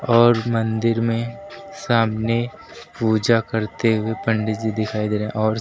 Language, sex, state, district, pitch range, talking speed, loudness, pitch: Hindi, male, Uttar Pradesh, Lucknow, 110-115 Hz, 150 wpm, -21 LUFS, 115 Hz